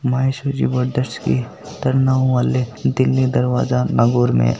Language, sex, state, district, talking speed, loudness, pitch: Hindi, male, Rajasthan, Nagaur, 115 wpm, -18 LUFS, 115 Hz